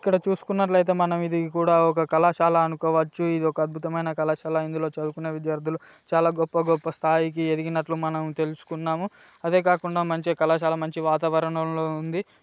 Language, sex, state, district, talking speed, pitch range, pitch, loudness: Telugu, male, Telangana, Nalgonda, 150 wpm, 160-170 Hz, 160 Hz, -24 LUFS